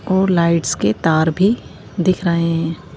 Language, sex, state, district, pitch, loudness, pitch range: Hindi, female, Madhya Pradesh, Bhopal, 170 Hz, -17 LUFS, 160-185 Hz